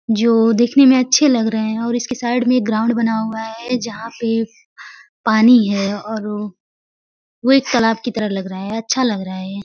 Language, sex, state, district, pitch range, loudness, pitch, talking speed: Hindi, female, Uttar Pradesh, Gorakhpur, 220-240 Hz, -17 LUFS, 225 Hz, 220 wpm